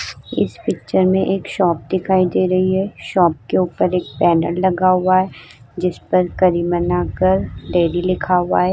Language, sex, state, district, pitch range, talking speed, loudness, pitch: Hindi, female, Uttar Pradesh, Budaun, 175-185 Hz, 170 wpm, -17 LUFS, 180 Hz